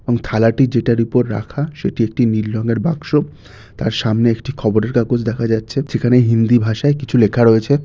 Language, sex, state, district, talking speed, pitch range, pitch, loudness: Bengali, male, West Bengal, North 24 Parganas, 185 wpm, 110-130 Hz, 115 Hz, -16 LUFS